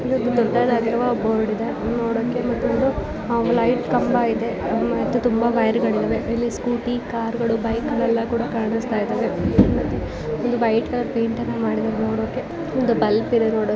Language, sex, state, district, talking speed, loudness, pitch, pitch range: Kannada, female, Karnataka, Bijapur, 140 wpm, -21 LUFS, 235 Hz, 225-240 Hz